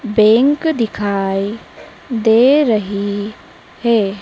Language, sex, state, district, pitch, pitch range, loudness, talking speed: Hindi, female, Madhya Pradesh, Dhar, 220 Hz, 205-235 Hz, -15 LUFS, 70 wpm